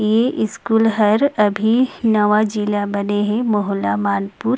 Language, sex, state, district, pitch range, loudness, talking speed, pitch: Chhattisgarhi, female, Chhattisgarh, Rajnandgaon, 205-225 Hz, -17 LUFS, 145 wpm, 215 Hz